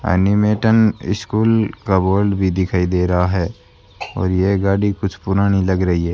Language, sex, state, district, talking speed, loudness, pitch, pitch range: Hindi, male, Rajasthan, Bikaner, 165 wpm, -17 LUFS, 95 Hz, 90-100 Hz